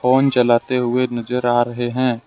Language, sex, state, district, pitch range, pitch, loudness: Hindi, male, Jharkhand, Ranchi, 120-125 Hz, 125 Hz, -18 LUFS